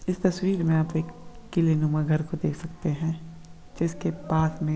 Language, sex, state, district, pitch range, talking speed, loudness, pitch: Hindi, male, Uttar Pradesh, Hamirpur, 155-175 Hz, 200 wpm, -27 LUFS, 165 Hz